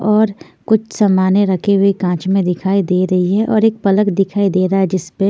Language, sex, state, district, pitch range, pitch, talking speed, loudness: Hindi, female, Chandigarh, Chandigarh, 185-205 Hz, 195 Hz, 225 wpm, -15 LUFS